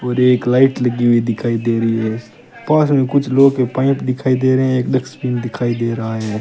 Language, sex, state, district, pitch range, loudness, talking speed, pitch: Hindi, male, Rajasthan, Bikaner, 115-130 Hz, -16 LUFS, 235 wpm, 125 Hz